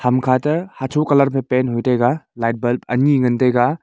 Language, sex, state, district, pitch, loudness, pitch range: Wancho, male, Arunachal Pradesh, Longding, 130 Hz, -17 LUFS, 125-140 Hz